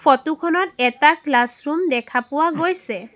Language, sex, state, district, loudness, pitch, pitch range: Assamese, female, Assam, Sonitpur, -19 LUFS, 295 Hz, 245-335 Hz